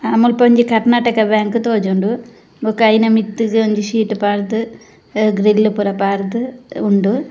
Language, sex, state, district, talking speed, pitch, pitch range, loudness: Tulu, female, Karnataka, Dakshina Kannada, 140 wpm, 220 Hz, 210-230 Hz, -15 LUFS